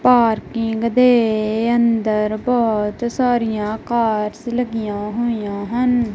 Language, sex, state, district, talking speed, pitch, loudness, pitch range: Punjabi, female, Punjab, Kapurthala, 90 wpm, 225 Hz, -18 LUFS, 215-240 Hz